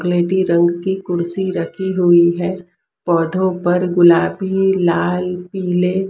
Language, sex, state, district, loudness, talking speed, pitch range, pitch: Hindi, female, Maharashtra, Mumbai Suburban, -16 LUFS, 120 wpm, 175-190 Hz, 180 Hz